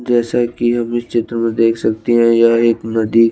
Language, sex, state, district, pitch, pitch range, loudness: Hindi, male, Chandigarh, Chandigarh, 115 Hz, 115-120 Hz, -15 LUFS